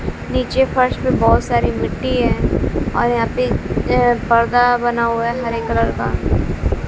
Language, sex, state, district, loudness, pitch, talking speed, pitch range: Hindi, female, Bihar, West Champaran, -17 LUFS, 235 Hz, 155 wpm, 230-245 Hz